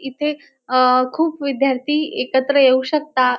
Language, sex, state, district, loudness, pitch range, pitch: Marathi, male, Maharashtra, Dhule, -17 LUFS, 255-300 Hz, 275 Hz